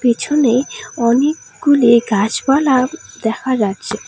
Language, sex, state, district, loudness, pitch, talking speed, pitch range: Bengali, female, West Bengal, Alipurduar, -15 LUFS, 250 Hz, 75 wpm, 235-280 Hz